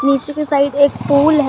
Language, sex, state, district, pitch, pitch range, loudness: Hindi, male, Jharkhand, Garhwa, 285 Hz, 280-295 Hz, -14 LUFS